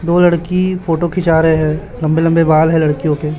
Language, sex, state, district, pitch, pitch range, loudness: Hindi, male, Chhattisgarh, Raipur, 165 Hz, 155-170 Hz, -13 LUFS